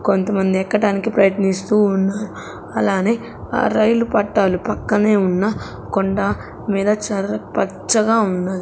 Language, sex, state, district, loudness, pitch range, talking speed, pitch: Telugu, female, Andhra Pradesh, Sri Satya Sai, -18 LUFS, 190-210 Hz, 105 wpm, 200 Hz